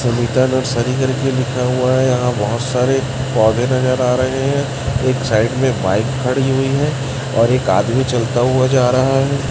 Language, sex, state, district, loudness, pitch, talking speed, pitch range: Hindi, male, Chhattisgarh, Raipur, -16 LUFS, 130 Hz, 185 wpm, 125-130 Hz